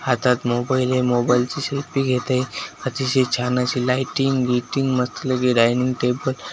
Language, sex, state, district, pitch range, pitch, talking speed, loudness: Marathi, male, Maharashtra, Washim, 125-130 Hz, 125 Hz, 145 wpm, -21 LUFS